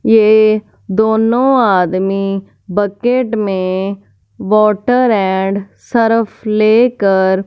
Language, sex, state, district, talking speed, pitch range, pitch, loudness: Hindi, female, Punjab, Fazilka, 70 wpm, 195-225 Hz, 210 Hz, -13 LUFS